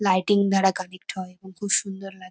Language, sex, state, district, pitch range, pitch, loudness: Bengali, female, West Bengal, North 24 Parganas, 185-195 Hz, 190 Hz, -23 LUFS